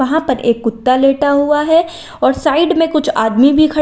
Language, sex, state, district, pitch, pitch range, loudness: Hindi, female, Uttar Pradesh, Lalitpur, 295 Hz, 260-320 Hz, -13 LUFS